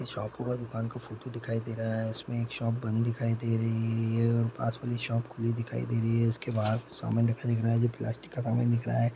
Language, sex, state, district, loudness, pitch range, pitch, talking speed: Hindi, male, Bihar, Purnia, -31 LUFS, 115-120 Hz, 115 Hz, 260 wpm